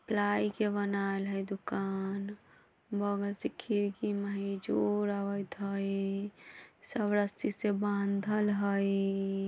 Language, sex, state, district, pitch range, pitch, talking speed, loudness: Bajjika, female, Bihar, Vaishali, 195-205 Hz, 200 Hz, 110 wpm, -33 LUFS